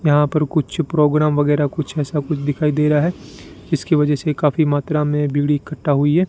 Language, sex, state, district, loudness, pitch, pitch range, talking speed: Hindi, male, Rajasthan, Bikaner, -18 LUFS, 150 Hz, 145-155 Hz, 210 wpm